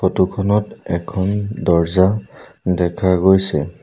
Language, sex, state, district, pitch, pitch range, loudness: Assamese, male, Assam, Sonitpur, 95 Hz, 90-100 Hz, -18 LUFS